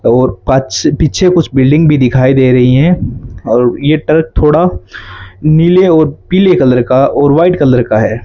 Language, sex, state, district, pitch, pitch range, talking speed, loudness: Hindi, male, Rajasthan, Bikaner, 135 Hz, 125-155 Hz, 175 wpm, -9 LUFS